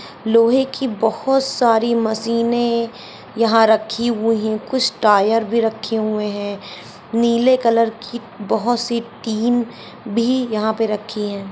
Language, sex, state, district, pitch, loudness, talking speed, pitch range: Hindi, female, Jharkhand, Sahebganj, 230 Hz, -18 LUFS, 135 wpm, 220-235 Hz